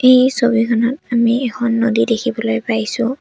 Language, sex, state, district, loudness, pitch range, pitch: Assamese, female, Assam, Sonitpur, -16 LUFS, 230-245 Hz, 235 Hz